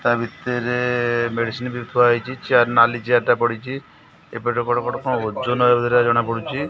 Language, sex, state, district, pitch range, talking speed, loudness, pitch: Odia, male, Odisha, Khordha, 120-125 Hz, 180 wpm, -19 LUFS, 120 Hz